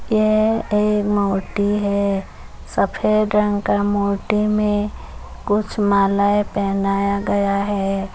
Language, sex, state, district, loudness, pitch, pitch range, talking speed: Hindi, female, Bihar, Madhepura, -19 LUFS, 205 Hz, 200-210 Hz, 105 wpm